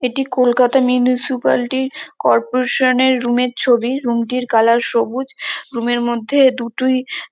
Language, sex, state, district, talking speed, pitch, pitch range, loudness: Bengali, female, West Bengal, North 24 Parganas, 140 wpm, 250 Hz, 240-260 Hz, -16 LUFS